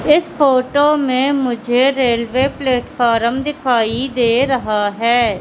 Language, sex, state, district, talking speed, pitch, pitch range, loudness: Hindi, female, Madhya Pradesh, Katni, 110 wpm, 255 Hz, 235-270 Hz, -15 LUFS